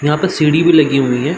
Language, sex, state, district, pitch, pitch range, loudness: Hindi, male, Uttar Pradesh, Varanasi, 150 Hz, 140-165 Hz, -12 LUFS